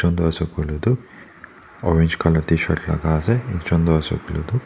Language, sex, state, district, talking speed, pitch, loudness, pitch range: Nagamese, male, Nagaland, Dimapur, 140 wpm, 85 Hz, -20 LUFS, 80-90 Hz